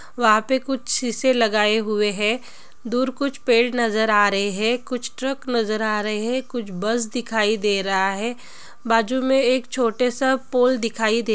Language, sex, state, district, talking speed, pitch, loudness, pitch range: Hindi, female, Bihar, Gopalganj, 175 wpm, 235 Hz, -21 LUFS, 215-255 Hz